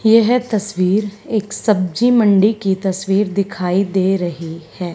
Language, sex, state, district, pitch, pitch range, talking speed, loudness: Hindi, female, Haryana, Charkhi Dadri, 195 Hz, 185-215 Hz, 135 wpm, -16 LUFS